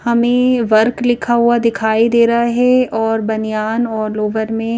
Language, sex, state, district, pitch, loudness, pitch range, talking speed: Hindi, female, Madhya Pradesh, Bhopal, 230 Hz, -14 LUFS, 220-240 Hz, 165 wpm